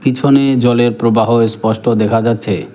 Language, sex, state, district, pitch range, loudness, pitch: Bengali, male, West Bengal, Cooch Behar, 110-120 Hz, -13 LUFS, 115 Hz